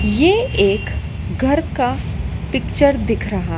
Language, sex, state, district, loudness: Hindi, female, Madhya Pradesh, Dhar, -18 LUFS